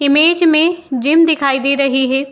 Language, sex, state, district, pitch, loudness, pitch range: Hindi, female, Uttar Pradesh, Jyotiba Phule Nagar, 285 Hz, -13 LUFS, 270-325 Hz